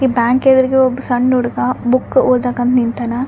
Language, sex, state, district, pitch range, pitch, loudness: Kannada, female, Karnataka, Raichur, 245-260 Hz, 250 Hz, -14 LUFS